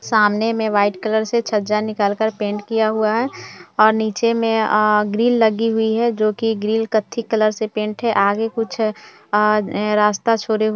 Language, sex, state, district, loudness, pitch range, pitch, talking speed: Hindi, female, Bihar, Bhagalpur, -18 LUFS, 210-225 Hz, 220 Hz, 195 wpm